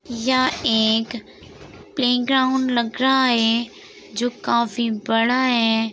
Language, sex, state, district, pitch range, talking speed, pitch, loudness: Hindi, female, Uttar Pradesh, Hamirpur, 225-255 Hz, 100 wpm, 235 Hz, -19 LUFS